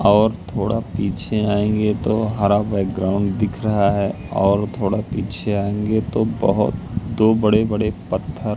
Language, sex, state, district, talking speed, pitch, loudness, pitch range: Hindi, male, Madhya Pradesh, Katni, 140 wpm, 105 Hz, -20 LUFS, 100-110 Hz